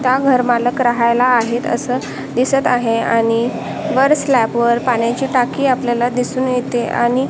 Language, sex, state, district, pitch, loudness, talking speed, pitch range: Marathi, female, Maharashtra, Washim, 245 Hz, -16 LUFS, 155 wpm, 235-260 Hz